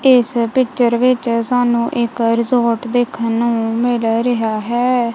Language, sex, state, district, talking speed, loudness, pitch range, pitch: Punjabi, female, Punjab, Kapurthala, 130 wpm, -16 LUFS, 230-245 Hz, 235 Hz